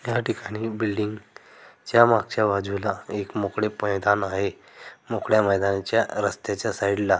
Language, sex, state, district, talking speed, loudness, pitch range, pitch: Marathi, male, Maharashtra, Dhule, 125 wpm, -24 LUFS, 100-110 Hz, 105 Hz